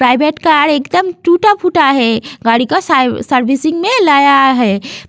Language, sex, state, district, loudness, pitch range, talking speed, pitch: Hindi, female, Uttar Pradesh, Jyotiba Phule Nagar, -11 LUFS, 255-345 Hz, 130 wpm, 285 Hz